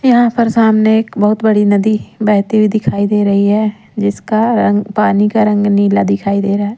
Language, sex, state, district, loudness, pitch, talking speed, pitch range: Hindi, female, Madhya Pradesh, Umaria, -12 LUFS, 210 Hz, 205 wpm, 205-220 Hz